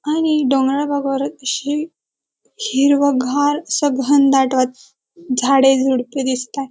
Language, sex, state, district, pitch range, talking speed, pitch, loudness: Marathi, female, Maharashtra, Dhule, 265-290 Hz, 100 wpm, 275 Hz, -17 LUFS